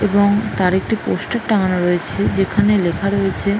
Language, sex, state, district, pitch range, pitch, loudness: Bengali, female, West Bengal, Jhargram, 180-205 Hz, 195 Hz, -17 LUFS